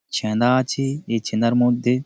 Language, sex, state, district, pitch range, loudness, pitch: Bengali, male, West Bengal, Malda, 115-130 Hz, -20 LUFS, 120 Hz